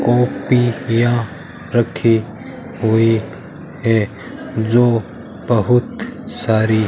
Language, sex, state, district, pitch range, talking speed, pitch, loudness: Hindi, male, Rajasthan, Bikaner, 110-120 Hz, 70 wpm, 115 Hz, -17 LUFS